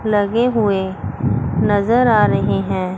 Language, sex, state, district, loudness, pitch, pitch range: Hindi, female, Chandigarh, Chandigarh, -17 LUFS, 205 Hz, 190-225 Hz